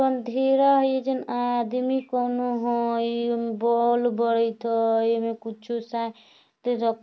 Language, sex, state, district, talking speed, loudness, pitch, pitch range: Bajjika, female, Bihar, Vaishali, 100 wpm, -24 LUFS, 235 Hz, 230-245 Hz